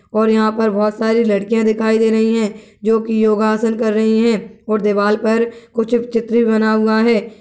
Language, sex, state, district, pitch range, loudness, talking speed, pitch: Hindi, male, Uttar Pradesh, Gorakhpur, 215-225 Hz, -16 LUFS, 205 wpm, 220 Hz